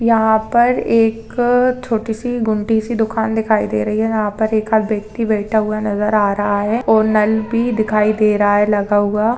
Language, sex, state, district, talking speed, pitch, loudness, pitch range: Hindi, female, Bihar, Saharsa, 190 wpm, 220 Hz, -16 LUFS, 210-225 Hz